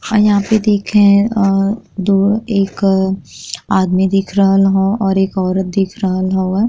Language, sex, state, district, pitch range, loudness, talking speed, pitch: Bhojpuri, female, Uttar Pradesh, Deoria, 190-205 Hz, -14 LUFS, 150 wpm, 195 Hz